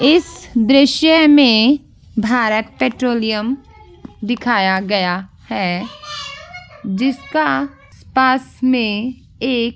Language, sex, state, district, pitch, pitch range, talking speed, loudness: Hindi, female, Rajasthan, Nagaur, 245 Hz, 215-275 Hz, 80 wpm, -16 LUFS